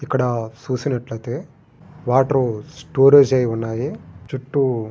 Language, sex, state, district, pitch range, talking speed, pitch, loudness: Telugu, male, Andhra Pradesh, Guntur, 115-135 Hz, 75 wpm, 130 Hz, -19 LUFS